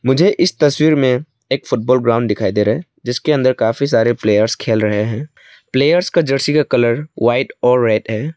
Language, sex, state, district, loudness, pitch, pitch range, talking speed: Hindi, male, Arunachal Pradesh, Lower Dibang Valley, -15 LUFS, 125 Hz, 115-150 Hz, 200 wpm